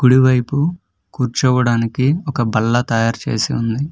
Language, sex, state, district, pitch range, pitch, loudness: Telugu, male, Karnataka, Bangalore, 115-140 Hz, 125 Hz, -17 LUFS